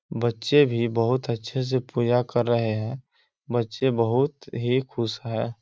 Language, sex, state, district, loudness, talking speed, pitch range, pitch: Hindi, male, Bihar, East Champaran, -25 LUFS, 150 wpm, 115-130 Hz, 120 Hz